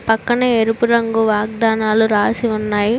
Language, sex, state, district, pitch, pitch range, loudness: Telugu, female, Andhra Pradesh, Chittoor, 225 Hz, 215-235 Hz, -16 LUFS